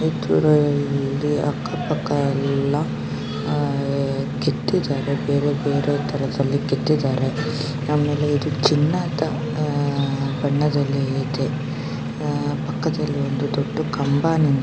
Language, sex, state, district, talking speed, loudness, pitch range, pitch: Kannada, female, Karnataka, Chamarajanagar, 65 wpm, -22 LUFS, 135-145 Hz, 140 Hz